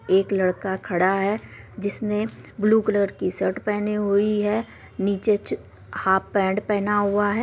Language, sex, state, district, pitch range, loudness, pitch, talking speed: Maithili, female, Bihar, Supaul, 195-210 Hz, -23 LUFS, 205 Hz, 155 wpm